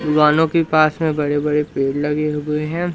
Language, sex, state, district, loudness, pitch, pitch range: Hindi, male, Madhya Pradesh, Umaria, -18 LUFS, 150 Hz, 150-160 Hz